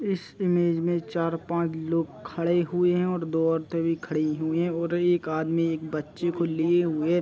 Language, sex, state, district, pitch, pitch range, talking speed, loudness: Hindi, male, Chhattisgarh, Bilaspur, 165 Hz, 160-175 Hz, 200 wpm, -26 LUFS